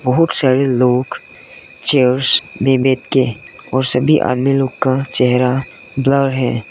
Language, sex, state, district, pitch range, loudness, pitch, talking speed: Hindi, male, Arunachal Pradesh, Lower Dibang Valley, 125-135 Hz, -15 LUFS, 130 Hz, 135 wpm